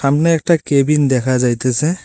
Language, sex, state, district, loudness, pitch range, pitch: Bengali, male, West Bengal, Cooch Behar, -15 LUFS, 130-160 Hz, 140 Hz